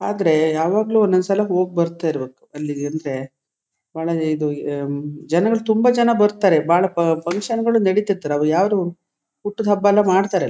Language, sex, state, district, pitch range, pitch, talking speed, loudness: Kannada, female, Karnataka, Shimoga, 150-205 Hz, 175 Hz, 145 wpm, -19 LUFS